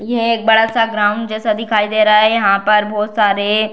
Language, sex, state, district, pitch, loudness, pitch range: Hindi, female, Bihar, Darbhanga, 215 Hz, -14 LUFS, 210-225 Hz